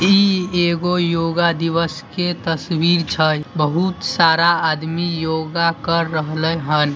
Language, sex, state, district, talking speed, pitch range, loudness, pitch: Hindi, male, Bihar, Samastipur, 120 wpm, 160-175 Hz, -18 LUFS, 165 Hz